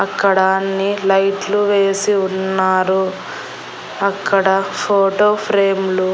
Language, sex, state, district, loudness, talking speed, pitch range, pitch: Telugu, female, Andhra Pradesh, Annamaya, -16 LUFS, 100 wpm, 190-200 Hz, 195 Hz